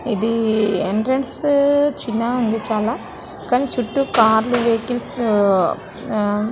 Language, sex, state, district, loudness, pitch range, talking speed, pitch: Telugu, female, Telangana, Nalgonda, -18 LUFS, 215-250 Hz, 100 wpm, 230 Hz